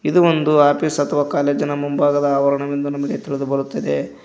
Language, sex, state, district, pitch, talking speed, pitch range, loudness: Kannada, male, Karnataka, Koppal, 145 Hz, 170 wpm, 140-145 Hz, -18 LUFS